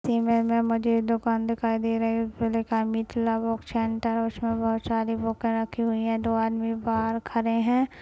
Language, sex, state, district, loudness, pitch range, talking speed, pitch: Hindi, male, Maharashtra, Nagpur, -26 LUFS, 225-230 Hz, 120 wpm, 225 Hz